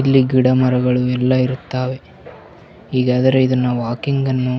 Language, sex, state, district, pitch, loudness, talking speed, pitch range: Kannada, male, Karnataka, Bellary, 130 Hz, -17 LUFS, 130 wpm, 125-130 Hz